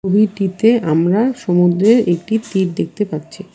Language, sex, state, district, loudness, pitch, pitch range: Bengali, female, West Bengal, Alipurduar, -15 LUFS, 195 Hz, 175-220 Hz